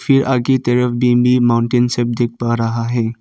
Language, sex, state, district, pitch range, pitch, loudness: Hindi, male, Arunachal Pradesh, Papum Pare, 120-125 Hz, 120 Hz, -15 LUFS